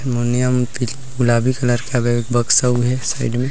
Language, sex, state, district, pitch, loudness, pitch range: Chhattisgarhi, male, Chhattisgarh, Rajnandgaon, 125 Hz, -18 LUFS, 120-125 Hz